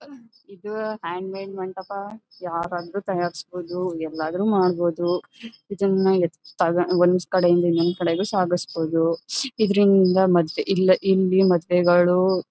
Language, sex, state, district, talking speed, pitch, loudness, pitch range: Kannada, female, Karnataka, Mysore, 85 wpm, 185 Hz, -21 LUFS, 175-195 Hz